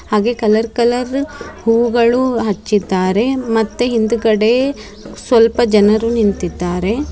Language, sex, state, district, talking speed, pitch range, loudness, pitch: Kannada, female, Karnataka, Bidar, 85 wpm, 210-240 Hz, -15 LUFS, 230 Hz